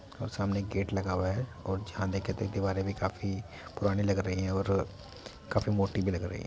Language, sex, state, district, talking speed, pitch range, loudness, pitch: Hindi, male, Uttar Pradesh, Muzaffarnagar, 220 wpm, 95-100 Hz, -32 LUFS, 95 Hz